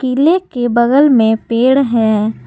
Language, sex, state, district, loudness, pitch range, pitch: Hindi, female, Jharkhand, Garhwa, -12 LUFS, 225-270 Hz, 245 Hz